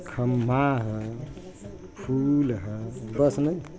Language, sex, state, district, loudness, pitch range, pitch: Bhojpuri, male, Uttar Pradesh, Ghazipur, -26 LUFS, 110-140 Hz, 125 Hz